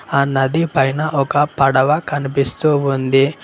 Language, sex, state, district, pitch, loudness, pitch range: Telugu, male, Telangana, Mahabubabad, 140 Hz, -16 LUFS, 135-150 Hz